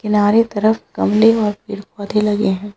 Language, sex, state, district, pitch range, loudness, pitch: Hindi, female, Bihar, Jahanabad, 205-215 Hz, -16 LUFS, 210 Hz